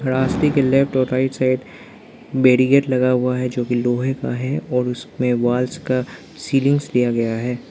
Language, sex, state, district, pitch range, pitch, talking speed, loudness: Hindi, male, Arunachal Pradesh, Lower Dibang Valley, 125-135 Hz, 130 Hz, 180 wpm, -19 LUFS